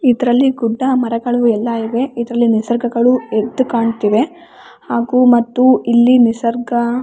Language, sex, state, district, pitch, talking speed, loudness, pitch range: Kannada, female, Karnataka, Raichur, 240 Hz, 110 wpm, -14 LUFS, 230-250 Hz